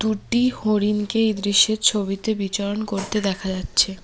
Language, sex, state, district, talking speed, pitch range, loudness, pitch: Bengali, female, West Bengal, Cooch Behar, 135 wpm, 195-220 Hz, -21 LUFS, 210 Hz